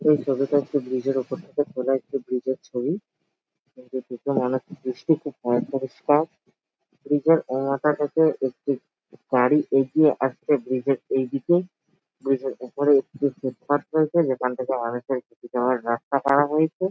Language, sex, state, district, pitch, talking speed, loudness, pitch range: Bengali, male, West Bengal, Jalpaiguri, 135 Hz, 160 wpm, -24 LUFS, 130-150 Hz